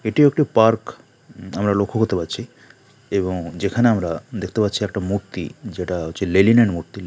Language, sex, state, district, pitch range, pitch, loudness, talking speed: Bengali, male, West Bengal, Kolkata, 95-110 Hz, 100 Hz, -20 LUFS, 155 wpm